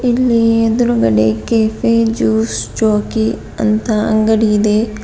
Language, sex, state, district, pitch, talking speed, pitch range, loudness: Kannada, female, Karnataka, Bidar, 220 Hz, 95 wpm, 210-230 Hz, -14 LUFS